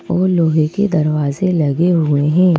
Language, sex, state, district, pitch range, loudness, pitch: Hindi, female, Madhya Pradesh, Bhopal, 150-180 Hz, -15 LUFS, 165 Hz